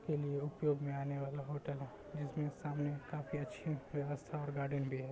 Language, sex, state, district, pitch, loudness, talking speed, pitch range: Hindi, male, Bihar, Muzaffarpur, 145 Hz, -41 LUFS, 210 wpm, 140-150 Hz